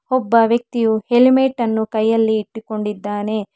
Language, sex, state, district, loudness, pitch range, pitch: Kannada, female, Karnataka, Bangalore, -17 LUFS, 215-240 Hz, 225 Hz